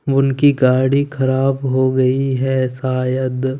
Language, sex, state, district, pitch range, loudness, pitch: Hindi, male, Punjab, Kapurthala, 130-135 Hz, -16 LUFS, 130 Hz